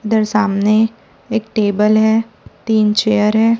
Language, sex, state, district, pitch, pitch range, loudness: Hindi, female, Chhattisgarh, Raipur, 220 Hz, 210-225 Hz, -15 LUFS